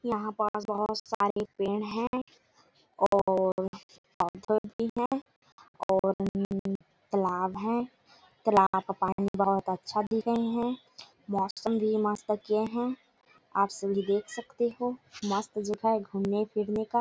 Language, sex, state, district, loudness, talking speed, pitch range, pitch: Hindi, female, Chhattisgarh, Bilaspur, -30 LUFS, 125 wpm, 195-225 Hz, 210 Hz